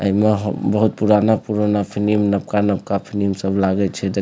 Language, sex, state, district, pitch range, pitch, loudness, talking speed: Maithili, male, Bihar, Supaul, 100-105 Hz, 105 Hz, -18 LUFS, 170 wpm